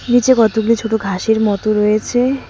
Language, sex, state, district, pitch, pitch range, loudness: Bengali, female, West Bengal, Cooch Behar, 220 Hz, 215-245 Hz, -15 LUFS